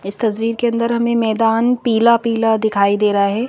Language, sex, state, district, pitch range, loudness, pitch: Hindi, female, Madhya Pradesh, Bhopal, 215-235 Hz, -16 LUFS, 225 Hz